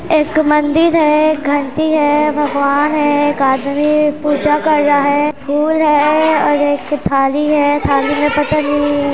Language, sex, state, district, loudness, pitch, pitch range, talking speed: Hindi, female, Chhattisgarh, Sarguja, -13 LUFS, 295 Hz, 290-300 Hz, 155 wpm